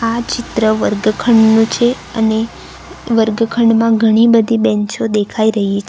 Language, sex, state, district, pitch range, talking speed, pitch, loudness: Gujarati, female, Gujarat, Valsad, 220-230 Hz, 120 wpm, 225 Hz, -13 LUFS